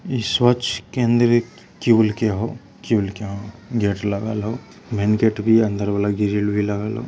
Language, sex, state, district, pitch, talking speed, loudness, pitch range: Hindi, male, Bihar, Lakhisarai, 110 Hz, 195 wpm, -20 LUFS, 105-115 Hz